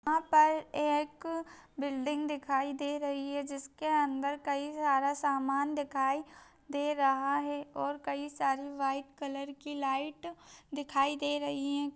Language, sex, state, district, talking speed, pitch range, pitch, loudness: Hindi, female, Bihar, East Champaran, 140 wpm, 275-295 Hz, 285 Hz, -33 LUFS